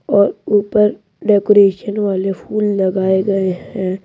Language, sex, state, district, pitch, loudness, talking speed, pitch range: Hindi, female, Madhya Pradesh, Bhopal, 200 Hz, -15 LUFS, 120 wpm, 190-210 Hz